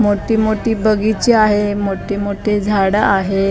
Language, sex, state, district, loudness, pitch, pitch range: Marathi, female, Maharashtra, Mumbai Suburban, -15 LUFS, 205 Hz, 200-215 Hz